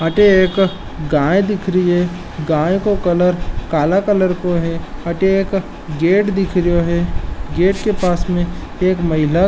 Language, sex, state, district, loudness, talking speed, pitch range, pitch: Marwari, male, Rajasthan, Nagaur, -16 LUFS, 165 wpm, 170-195 Hz, 180 Hz